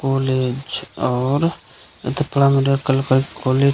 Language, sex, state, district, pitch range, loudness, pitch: Maithili, male, Bihar, Begusarai, 130-140 Hz, -19 LUFS, 135 Hz